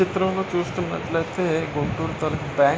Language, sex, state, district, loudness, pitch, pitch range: Telugu, male, Andhra Pradesh, Guntur, -24 LUFS, 160 Hz, 155-180 Hz